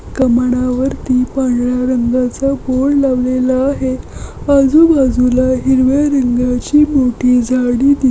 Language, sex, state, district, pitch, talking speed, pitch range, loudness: Marathi, female, Maharashtra, Aurangabad, 255 Hz, 105 wpm, 250-275 Hz, -13 LUFS